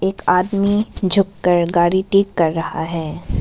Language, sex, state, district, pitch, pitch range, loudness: Hindi, female, Arunachal Pradesh, Lower Dibang Valley, 180 Hz, 165-195 Hz, -17 LUFS